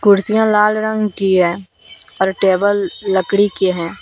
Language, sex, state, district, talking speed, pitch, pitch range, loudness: Hindi, female, Jharkhand, Deoghar, 150 wpm, 195 Hz, 190-210 Hz, -15 LUFS